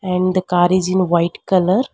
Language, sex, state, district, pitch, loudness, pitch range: English, female, Karnataka, Bangalore, 185 Hz, -16 LUFS, 180-185 Hz